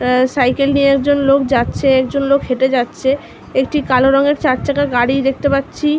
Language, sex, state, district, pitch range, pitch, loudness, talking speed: Bengali, female, West Bengal, North 24 Parganas, 260-280 Hz, 275 Hz, -14 LUFS, 170 wpm